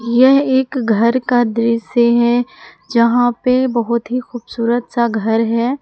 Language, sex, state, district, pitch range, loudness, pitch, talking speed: Hindi, female, Jharkhand, Palamu, 235-250 Hz, -15 LUFS, 240 Hz, 145 wpm